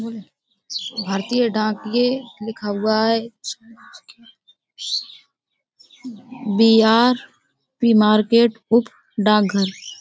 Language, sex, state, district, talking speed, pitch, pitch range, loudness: Hindi, female, Uttar Pradesh, Budaun, 60 wpm, 225 Hz, 215-235 Hz, -19 LUFS